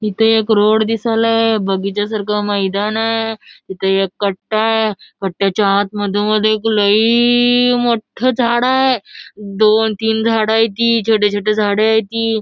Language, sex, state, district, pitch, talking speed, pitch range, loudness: Marathi, female, Maharashtra, Solapur, 220 Hz, 135 wpm, 205-225 Hz, -15 LUFS